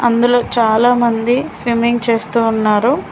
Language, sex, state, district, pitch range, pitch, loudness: Telugu, female, Telangana, Mahabubabad, 225-240 Hz, 235 Hz, -14 LUFS